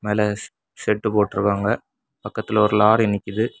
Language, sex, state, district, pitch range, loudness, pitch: Tamil, male, Tamil Nadu, Kanyakumari, 105-110 Hz, -20 LUFS, 105 Hz